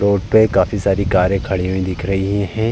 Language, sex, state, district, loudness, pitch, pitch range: Hindi, male, Uttar Pradesh, Jalaun, -17 LUFS, 100 Hz, 95-100 Hz